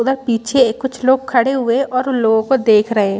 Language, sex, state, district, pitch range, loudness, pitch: Hindi, female, Chhattisgarh, Bastar, 225-265 Hz, -15 LUFS, 250 Hz